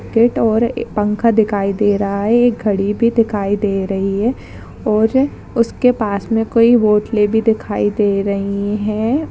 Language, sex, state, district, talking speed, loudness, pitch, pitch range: Hindi, female, Maharashtra, Dhule, 165 wpm, -16 LUFS, 215 Hz, 205-230 Hz